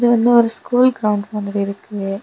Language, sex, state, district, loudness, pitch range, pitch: Tamil, female, Tamil Nadu, Kanyakumari, -17 LUFS, 200-240 Hz, 215 Hz